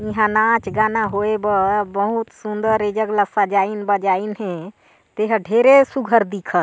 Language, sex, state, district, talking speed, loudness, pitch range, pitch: Chhattisgarhi, female, Chhattisgarh, Sarguja, 165 wpm, -18 LUFS, 200-220 Hz, 210 Hz